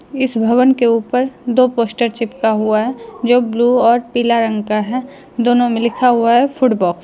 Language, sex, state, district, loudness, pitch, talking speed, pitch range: Hindi, female, Jharkhand, Deoghar, -15 LUFS, 235 Hz, 205 wpm, 225-250 Hz